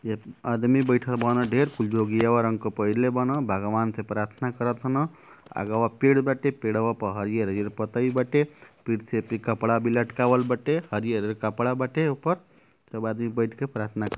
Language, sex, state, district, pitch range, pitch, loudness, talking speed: Bhojpuri, male, Uttar Pradesh, Ghazipur, 110-125 Hz, 115 Hz, -26 LUFS, 170 wpm